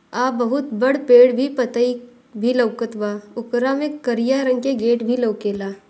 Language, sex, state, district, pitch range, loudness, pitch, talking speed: Bhojpuri, female, Bihar, Gopalganj, 230-255 Hz, -19 LUFS, 245 Hz, 185 wpm